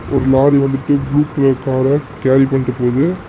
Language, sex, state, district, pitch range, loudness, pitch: Tamil, male, Tamil Nadu, Namakkal, 130-140 Hz, -14 LUFS, 135 Hz